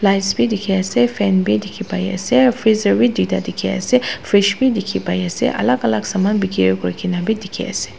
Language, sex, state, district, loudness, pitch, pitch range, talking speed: Nagamese, female, Nagaland, Dimapur, -17 LUFS, 195 Hz, 180-220 Hz, 205 wpm